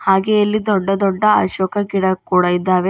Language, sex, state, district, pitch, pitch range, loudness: Kannada, female, Karnataka, Bidar, 195 Hz, 185-205 Hz, -16 LUFS